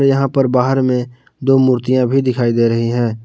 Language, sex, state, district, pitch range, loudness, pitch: Hindi, male, Jharkhand, Garhwa, 120-135 Hz, -15 LUFS, 125 Hz